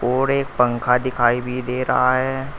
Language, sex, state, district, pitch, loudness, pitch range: Hindi, male, Uttar Pradesh, Saharanpur, 125 Hz, -19 LUFS, 125-130 Hz